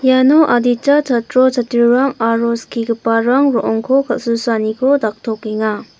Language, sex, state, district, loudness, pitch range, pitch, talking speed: Garo, female, Meghalaya, West Garo Hills, -14 LUFS, 230-260 Hz, 240 Hz, 90 wpm